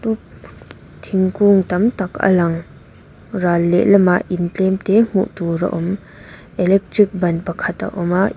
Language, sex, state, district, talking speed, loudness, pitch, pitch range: Mizo, female, Mizoram, Aizawl, 150 wpm, -17 LUFS, 190 Hz, 175-200 Hz